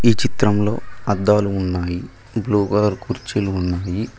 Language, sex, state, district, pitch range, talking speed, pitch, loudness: Telugu, male, Telangana, Mahabubabad, 95-110 Hz, 115 wpm, 105 Hz, -20 LUFS